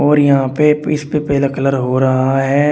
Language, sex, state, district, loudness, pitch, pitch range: Hindi, male, Uttar Pradesh, Shamli, -14 LUFS, 140 Hz, 135-150 Hz